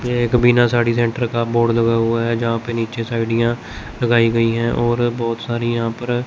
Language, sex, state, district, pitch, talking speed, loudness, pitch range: Hindi, male, Chandigarh, Chandigarh, 115 Hz, 210 wpm, -18 LUFS, 115-120 Hz